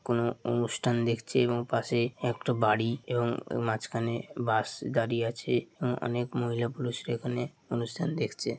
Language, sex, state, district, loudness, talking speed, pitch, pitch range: Bengali, male, West Bengal, Dakshin Dinajpur, -30 LUFS, 135 wpm, 120 Hz, 115-120 Hz